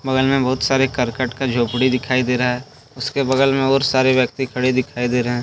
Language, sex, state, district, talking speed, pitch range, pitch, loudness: Hindi, male, Jharkhand, Deoghar, 220 wpm, 125-135 Hz, 130 Hz, -18 LUFS